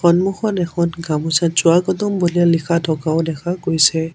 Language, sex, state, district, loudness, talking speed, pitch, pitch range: Assamese, male, Assam, Sonitpur, -17 LUFS, 130 wpm, 170 Hz, 160-175 Hz